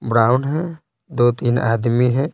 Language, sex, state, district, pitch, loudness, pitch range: Hindi, male, Bihar, Patna, 120 Hz, -18 LUFS, 115-140 Hz